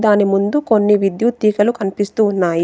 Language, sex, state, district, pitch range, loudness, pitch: Telugu, female, Telangana, Adilabad, 195-215 Hz, -15 LUFS, 205 Hz